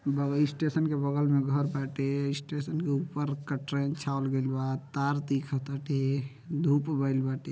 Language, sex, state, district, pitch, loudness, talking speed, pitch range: Bhojpuri, male, Uttar Pradesh, Deoria, 140 Hz, -30 LUFS, 160 wpm, 135-145 Hz